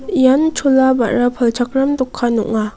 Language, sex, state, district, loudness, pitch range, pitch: Garo, female, Meghalaya, West Garo Hills, -15 LUFS, 235-270 Hz, 255 Hz